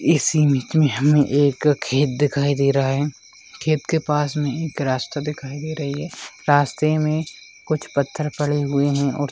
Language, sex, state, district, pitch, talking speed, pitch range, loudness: Hindi, male, Bihar, Madhepura, 145 Hz, 180 wpm, 140-150 Hz, -20 LUFS